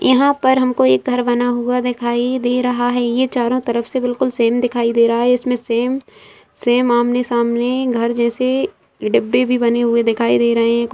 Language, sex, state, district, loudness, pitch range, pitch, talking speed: Hindi, male, Bihar, Araria, -16 LUFS, 235-250 Hz, 245 Hz, 190 wpm